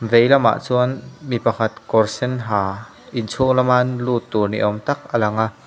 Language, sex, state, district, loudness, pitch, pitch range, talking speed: Mizo, male, Mizoram, Aizawl, -19 LUFS, 120 Hz, 110-125 Hz, 180 wpm